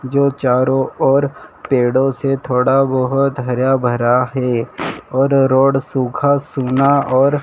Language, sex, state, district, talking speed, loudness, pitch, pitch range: Hindi, male, Madhya Pradesh, Dhar, 120 wpm, -15 LUFS, 135 Hz, 125-135 Hz